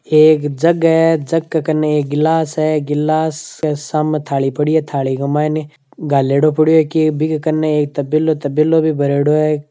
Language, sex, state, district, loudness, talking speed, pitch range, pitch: Hindi, male, Rajasthan, Nagaur, -15 LUFS, 185 wpm, 145-155 Hz, 155 Hz